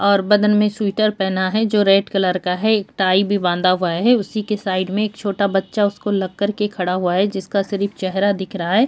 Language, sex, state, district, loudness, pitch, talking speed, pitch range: Hindi, female, Uttar Pradesh, Jyotiba Phule Nagar, -18 LUFS, 200 Hz, 245 wpm, 190-210 Hz